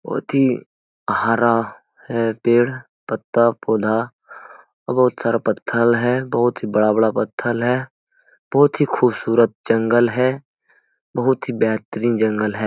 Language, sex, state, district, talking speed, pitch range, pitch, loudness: Hindi, male, Bihar, Jahanabad, 125 wpm, 110-125 Hz, 120 Hz, -19 LUFS